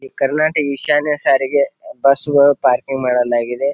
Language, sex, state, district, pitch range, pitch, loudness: Kannada, male, Karnataka, Bijapur, 135-155 Hz, 140 Hz, -16 LUFS